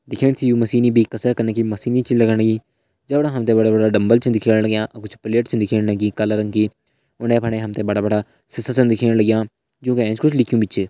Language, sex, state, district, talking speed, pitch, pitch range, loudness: Hindi, male, Uttarakhand, Uttarkashi, 260 wpm, 110 Hz, 110-120 Hz, -18 LUFS